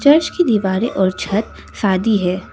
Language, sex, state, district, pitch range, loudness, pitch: Hindi, female, Arunachal Pradesh, Lower Dibang Valley, 190-240 Hz, -17 LUFS, 205 Hz